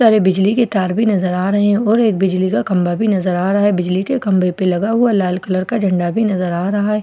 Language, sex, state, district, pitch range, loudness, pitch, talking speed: Hindi, female, Bihar, Katihar, 185-215 Hz, -16 LUFS, 195 Hz, 315 wpm